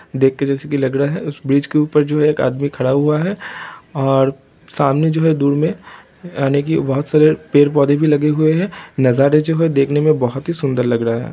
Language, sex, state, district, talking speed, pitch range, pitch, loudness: Hindi, male, Bihar, Vaishali, 235 wpm, 135-155 Hz, 145 Hz, -16 LUFS